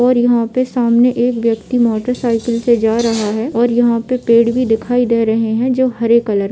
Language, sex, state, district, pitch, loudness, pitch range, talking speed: Hindi, female, Jharkhand, Sahebganj, 235 Hz, -14 LUFS, 230-245 Hz, 230 wpm